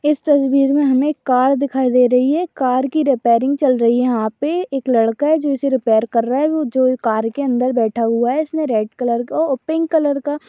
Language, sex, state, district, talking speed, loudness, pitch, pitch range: Hindi, female, Maharashtra, Sindhudurg, 235 wpm, -17 LUFS, 265 Hz, 245-290 Hz